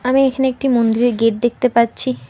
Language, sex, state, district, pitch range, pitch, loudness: Bengali, female, West Bengal, Alipurduar, 230-260 Hz, 240 Hz, -16 LUFS